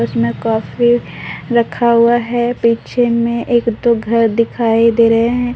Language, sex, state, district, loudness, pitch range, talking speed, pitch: Hindi, female, Jharkhand, Deoghar, -14 LUFS, 230-240 Hz, 150 wpm, 235 Hz